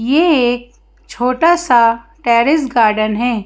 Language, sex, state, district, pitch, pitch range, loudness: Hindi, female, Madhya Pradesh, Bhopal, 245 Hz, 230-295 Hz, -14 LUFS